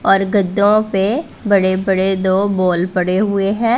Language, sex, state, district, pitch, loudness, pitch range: Hindi, female, Punjab, Pathankot, 195 Hz, -15 LUFS, 190-205 Hz